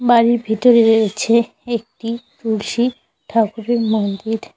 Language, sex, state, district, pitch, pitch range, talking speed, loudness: Bengali, female, West Bengal, Cooch Behar, 230 Hz, 220-240 Hz, 90 wpm, -17 LUFS